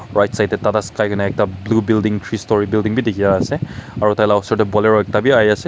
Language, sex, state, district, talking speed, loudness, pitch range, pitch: Nagamese, male, Nagaland, Kohima, 255 wpm, -16 LUFS, 105-110 Hz, 105 Hz